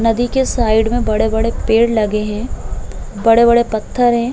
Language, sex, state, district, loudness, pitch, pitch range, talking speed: Hindi, female, Uttar Pradesh, Hamirpur, -15 LUFS, 230 Hz, 220-235 Hz, 150 wpm